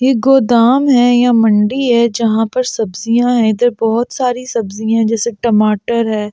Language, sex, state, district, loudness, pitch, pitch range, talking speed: Hindi, female, Delhi, New Delhi, -13 LUFS, 235 Hz, 225-245 Hz, 170 wpm